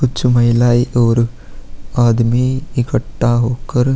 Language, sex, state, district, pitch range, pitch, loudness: Hindi, male, Chhattisgarh, Korba, 120-125 Hz, 120 Hz, -15 LUFS